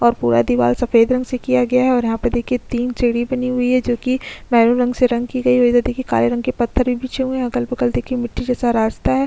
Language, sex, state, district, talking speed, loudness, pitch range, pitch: Hindi, female, Chhattisgarh, Sukma, 270 wpm, -18 LUFS, 235-255 Hz, 245 Hz